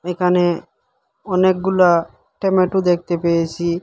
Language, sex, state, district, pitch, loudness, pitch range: Bengali, male, Assam, Hailakandi, 180 Hz, -17 LUFS, 170-185 Hz